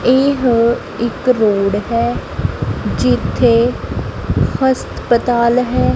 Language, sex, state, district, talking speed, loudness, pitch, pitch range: Punjabi, female, Punjab, Kapurthala, 70 wpm, -15 LUFS, 235 Hz, 230-250 Hz